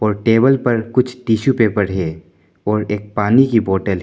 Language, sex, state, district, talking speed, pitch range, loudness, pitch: Hindi, male, Arunachal Pradesh, Papum Pare, 195 wpm, 100-120 Hz, -16 LUFS, 105 Hz